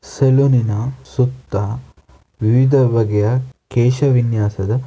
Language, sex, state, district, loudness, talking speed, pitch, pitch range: Kannada, male, Karnataka, Dakshina Kannada, -16 LUFS, 60 wpm, 125 Hz, 110-130 Hz